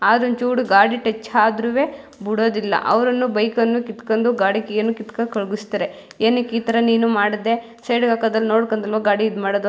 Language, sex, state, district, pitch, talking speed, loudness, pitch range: Kannada, female, Karnataka, Mysore, 225 Hz, 160 wpm, -19 LUFS, 215-235 Hz